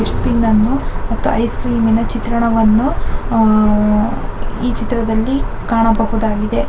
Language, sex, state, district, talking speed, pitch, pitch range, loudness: Kannada, female, Karnataka, Dakshina Kannada, 90 wpm, 225 Hz, 220-235 Hz, -16 LUFS